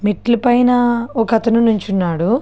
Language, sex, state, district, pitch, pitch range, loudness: Telugu, female, Andhra Pradesh, Srikakulam, 230 Hz, 205-240 Hz, -15 LUFS